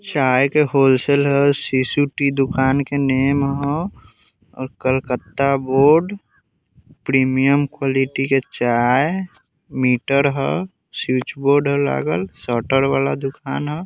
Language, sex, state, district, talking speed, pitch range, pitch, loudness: Hindi, male, Bihar, Vaishali, 115 wpm, 130-140 Hz, 135 Hz, -18 LUFS